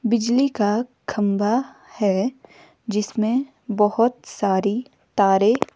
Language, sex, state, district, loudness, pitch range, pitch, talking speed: Hindi, female, Himachal Pradesh, Shimla, -21 LUFS, 210-260 Hz, 230 Hz, 85 wpm